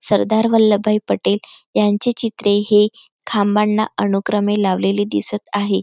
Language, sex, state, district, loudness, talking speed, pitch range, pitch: Marathi, female, Maharashtra, Chandrapur, -17 LUFS, 125 wpm, 195-215 Hz, 205 Hz